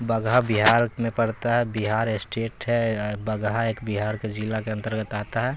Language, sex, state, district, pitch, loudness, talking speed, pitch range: Hindi, male, Bihar, West Champaran, 110 Hz, -24 LUFS, 185 wpm, 110-115 Hz